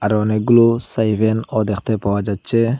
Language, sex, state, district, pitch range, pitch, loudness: Bengali, male, Assam, Hailakandi, 105-115 Hz, 110 Hz, -17 LUFS